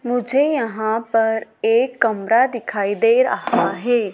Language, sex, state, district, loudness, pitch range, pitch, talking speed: Hindi, female, Madhya Pradesh, Dhar, -18 LUFS, 220-245 Hz, 230 Hz, 130 wpm